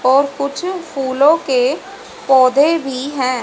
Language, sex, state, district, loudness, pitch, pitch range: Hindi, female, Haryana, Charkhi Dadri, -15 LUFS, 275 Hz, 260-290 Hz